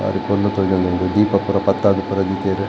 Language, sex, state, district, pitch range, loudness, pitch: Tulu, male, Karnataka, Dakshina Kannada, 95-100 Hz, -18 LUFS, 95 Hz